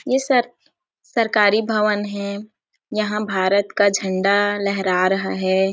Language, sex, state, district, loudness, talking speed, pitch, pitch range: Hindi, female, Chhattisgarh, Sarguja, -19 LUFS, 125 wpm, 205 Hz, 195-215 Hz